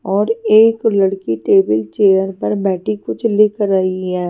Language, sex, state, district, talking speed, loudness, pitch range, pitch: Hindi, female, Haryana, Charkhi Dadri, 155 wpm, -15 LUFS, 180-210 Hz, 195 Hz